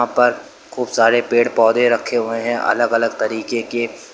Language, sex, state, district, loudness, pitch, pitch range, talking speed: Hindi, male, Uttar Pradesh, Lucknow, -17 LUFS, 120 Hz, 115-120 Hz, 175 wpm